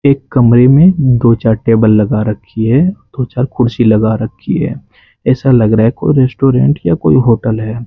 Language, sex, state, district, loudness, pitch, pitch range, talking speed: Hindi, male, Rajasthan, Bikaner, -11 LUFS, 115 Hz, 110-130 Hz, 190 wpm